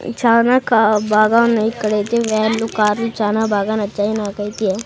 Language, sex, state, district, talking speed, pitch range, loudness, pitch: Telugu, female, Andhra Pradesh, Sri Satya Sai, 135 wpm, 210-230 Hz, -16 LUFS, 215 Hz